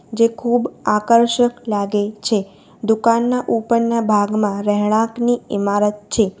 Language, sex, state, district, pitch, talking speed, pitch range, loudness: Gujarati, female, Gujarat, Valsad, 220 Hz, 105 wpm, 205-235 Hz, -18 LUFS